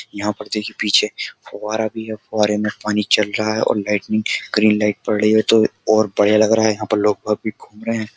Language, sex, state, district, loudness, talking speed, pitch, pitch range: Hindi, male, Uttar Pradesh, Jyotiba Phule Nagar, -18 LUFS, 250 wpm, 105 Hz, 105-110 Hz